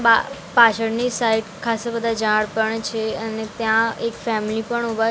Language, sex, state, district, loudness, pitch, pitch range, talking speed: Gujarati, female, Gujarat, Gandhinagar, -20 LUFS, 225 Hz, 220-230 Hz, 165 wpm